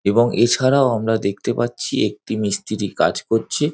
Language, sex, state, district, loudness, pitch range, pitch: Bengali, male, West Bengal, Dakshin Dinajpur, -19 LUFS, 110-125 Hz, 120 Hz